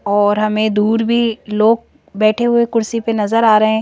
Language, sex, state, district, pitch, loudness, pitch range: Hindi, female, Madhya Pradesh, Bhopal, 220 Hz, -15 LUFS, 215-230 Hz